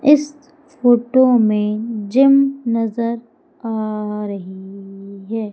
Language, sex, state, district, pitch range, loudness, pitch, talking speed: Hindi, female, Madhya Pradesh, Umaria, 210-270 Hz, -17 LUFS, 230 Hz, 85 wpm